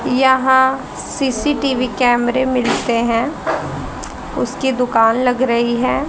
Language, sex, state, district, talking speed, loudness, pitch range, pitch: Hindi, female, Haryana, Rohtak, 100 wpm, -16 LUFS, 240-260 Hz, 255 Hz